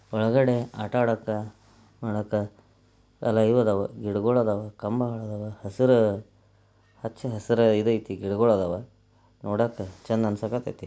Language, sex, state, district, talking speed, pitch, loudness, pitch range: Kannada, male, Karnataka, Belgaum, 115 wpm, 110 Hz, -26 LUFS, 105-115 Hz